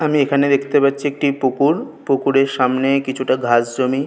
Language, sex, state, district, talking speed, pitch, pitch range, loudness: Bengali, male, West Bengal, North 24 Parganas, 160 wpm, 135 Hz, 130-140 Hz, -17 LUFS